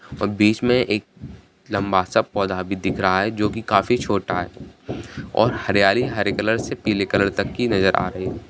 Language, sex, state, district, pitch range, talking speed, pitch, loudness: Hindi, male, Bihar, Kishanganj, 95-110 Hz, 190 wpm, 100 Hz, -20 LUFS